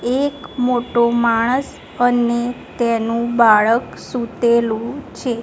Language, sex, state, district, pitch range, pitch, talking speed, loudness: Gujarati, female, Gujarat, Gandhinagar, 235-245 Hz, 235 Hz, 90 wpm, -17 LUFS